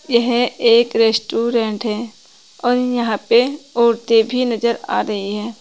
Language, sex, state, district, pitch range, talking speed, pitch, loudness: Hindi, female, Uttar Pradesh, Saharanpur, 225-240 Hz, 140 wpm, 235 Hz, -17 LUFS